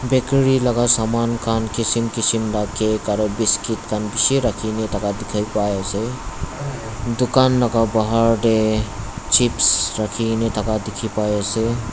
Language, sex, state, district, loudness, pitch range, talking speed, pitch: Nagamese, male, Nagaland, Dimapur, -19 LUFS, 105-115 Hz, 115 wpm, 110 Hz